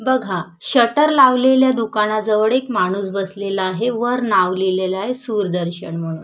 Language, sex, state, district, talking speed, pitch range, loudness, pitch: Marathi, female, Maharashtra, Solapur, 135 wpm, 185-250 Hz, -17 LUFS, 210 Hz